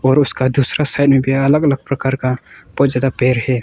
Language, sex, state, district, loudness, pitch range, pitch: Hindi, male, Arunachal Pradesh, Longding, -15 LUFS, 130-140 Hz, 135 Hz